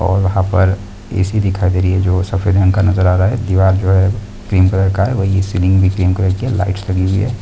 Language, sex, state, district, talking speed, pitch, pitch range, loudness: Hindi, male, Rajasthan, Churu, 235 wpm, 95 Hz, 95-100 Hz, -14 LUFS